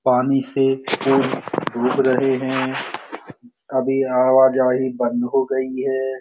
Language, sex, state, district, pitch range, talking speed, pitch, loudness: Hindi, male, Bihar, Lakhisarai, 130-135 Hz, 135 wpm, 130 Hz, -19 LUFS